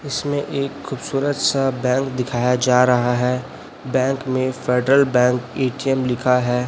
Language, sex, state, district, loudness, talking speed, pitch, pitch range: Hindi, male, Chhattisgarh, Raipur, -19 LUFS, 145 wpm, 130 Hz, 125-135 Hz